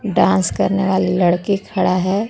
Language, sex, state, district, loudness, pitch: Hindi, female, Jharkhand, Garhwa, -17 LUFS, 175 Hz